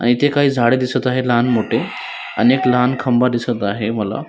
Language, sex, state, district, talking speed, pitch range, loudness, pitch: Marathi, male, Maharashtra, Dhule, 225 wpm, 120-130 Hz, -17 LUFS, 125 Hz